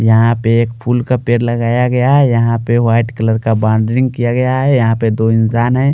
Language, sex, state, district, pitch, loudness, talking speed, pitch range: Hindi, male, Bihar, Patna, 115 Hz, -13 LUFS, 150 wpm, 115-125 Hz